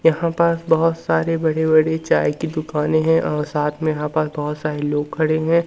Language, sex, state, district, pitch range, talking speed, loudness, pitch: Hindi, male, Madhya Pradesh, Umaria, 150-165 Hz, 200 wpm, -19 LUFS, 155 Hz